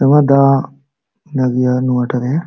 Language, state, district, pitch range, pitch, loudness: Santali, Jharkhand, Sahebganj, 125-140 Hz, 135 Hz, -14 LUFS